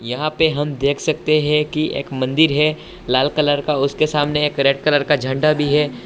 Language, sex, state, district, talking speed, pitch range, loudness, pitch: Hindi, male, Assam, Hailakandi, 220 wpm, 140-155 Hz, -18 LUFS, 145 Hz